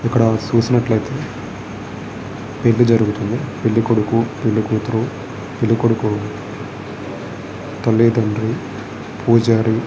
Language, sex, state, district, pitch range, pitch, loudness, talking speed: Telugu, male, Andhra Pradesh, Srikakulam, 110-115 Hz, 115 Hz, -18 LUFS, 65 wpm